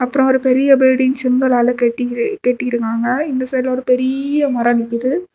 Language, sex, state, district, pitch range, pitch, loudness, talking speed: Tamil, female, Tamil Nadu, Kanyakumari, 245-265 Hz, 255 Hz, -16 LUFS, 155 wpm